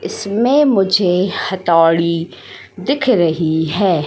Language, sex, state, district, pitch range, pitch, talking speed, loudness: Hindi, female, Madhya Pradesh, Katni, 165-200 Hz, 180 Hz, 90 wpm, -15 LUFS